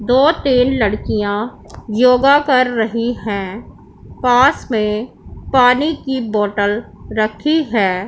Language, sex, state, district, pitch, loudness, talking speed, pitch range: Hindi, female, Punjab, Pathankot, 240 Hz, -15 LUFS, 105 wpm, 210-260 Hz